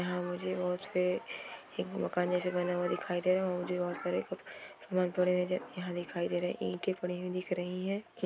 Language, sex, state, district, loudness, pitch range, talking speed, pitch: Hindi, female, Bihar, Gopalganj, -34 LUFS, 180-185 Hz, 220 wpm, 180 Hz